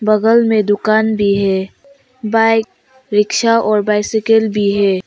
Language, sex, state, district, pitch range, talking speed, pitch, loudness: Hindi, female, Arunachal Pradesh, Papum Pare, 210-225 Hz, 130 wpm, 215 Hz, -14 LUFS